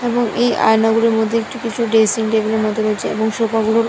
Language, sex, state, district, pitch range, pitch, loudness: Bengali, female, West Bengal, Purulia, 220-230 Hz, 225 Hz, -16 LUFS